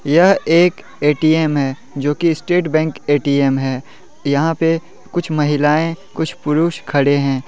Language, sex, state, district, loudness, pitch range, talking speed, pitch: Hindi, male, Jharkhand, Deoghar, -16 LUFS, 140-165 Hz, 135 wpm, 150 Hz